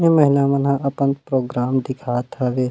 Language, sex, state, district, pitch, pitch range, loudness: Chhattisgarhi, male, Chhattisgarh, Rajnandgaon, 135 Hz, 130-140 Hz, -19 LUFS